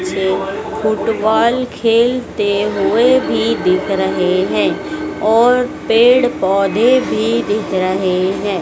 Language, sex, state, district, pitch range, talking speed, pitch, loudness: Hindi, female, Madhya Pradesh, Dhar, 190-235 Hz, 95 wpm, 210 Hz, -15 LUFS